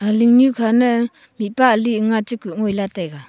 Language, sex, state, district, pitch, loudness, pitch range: Wancho, female, Arunachal Pradesh, Longding, 225 Hz, -17 LUFS, 205-235 Hz